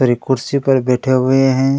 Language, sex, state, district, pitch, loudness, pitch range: Hindi, male, Chhattisgarh, Kabirdham, 130 Hz, -15 LUFS, 130-135 Hz